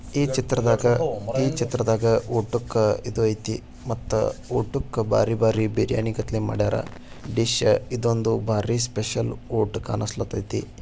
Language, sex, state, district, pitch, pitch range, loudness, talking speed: Kannada, male, Karnataka, Bijapur, 115 Hz, 110-120 Hz, -24 LUFS, 120 wpm